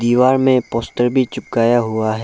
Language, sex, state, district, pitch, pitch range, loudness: Hindi, male, Arunachal Pradesh, Lower Dibang Valley, 120 Hz, 115-130 Hz, -16 LUFS